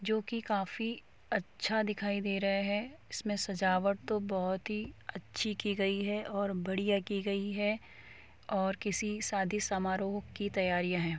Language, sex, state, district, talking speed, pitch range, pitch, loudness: Hindi, female, Uttar Pradesh, Muzaffarnagar, 150 wpm, 195-210 Hz, 200 Hz, -34 LUFS